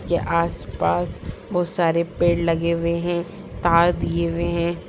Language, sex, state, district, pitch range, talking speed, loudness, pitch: Hindi, female, Bihar, Sitamarhi, 115-170 Hz, 160 wpm, -22 LUFS, 170 Hz